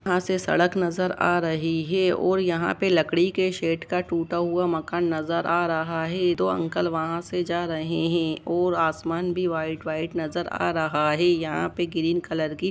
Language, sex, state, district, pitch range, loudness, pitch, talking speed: Hindi, male, Jharkhand, Sahebganj, 165-180 Hz, -24 LUFS, 170 Hz, 200 wpm